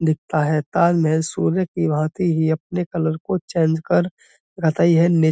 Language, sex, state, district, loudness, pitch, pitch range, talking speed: Hindi, male, Uttar Pradesh, Budaun, -20 LUFS, 160 Hz, 155-175 Hz, 180 wpm